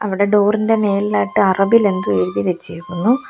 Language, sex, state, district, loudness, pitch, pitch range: Malayalam, female, Kerala, Kollam, -16 LUFS, 200 Hz, 175-210 Hz